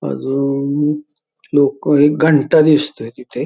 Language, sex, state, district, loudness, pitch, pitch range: Marathi, male, Maharashtra, Pune, -15 LUFS, 145 Hz, 140-150 Hz